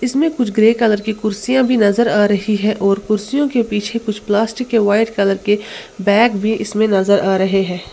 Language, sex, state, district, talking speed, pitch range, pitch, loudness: Hindi, female, Uttar Pradesh, Lalitpur, 210 wpm, 205-230 Hz, 215 Hz, -16 LUFS